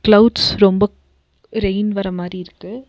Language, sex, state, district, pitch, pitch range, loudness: Tamil, female, Tamil Nadu, Nilgiris, 205 Hz, 190-215 Hz, -16 LUFS